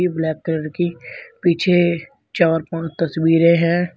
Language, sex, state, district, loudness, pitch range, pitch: Hindi, male, Uttar Pradesh, Shamli, -18 LUFS, 160-175 Hz, 165 Hz